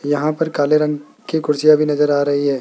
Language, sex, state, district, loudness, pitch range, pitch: Hindi, male, Rajasthan, Jaipur, -17 LUFS, 145-150 Hz, 150 Hz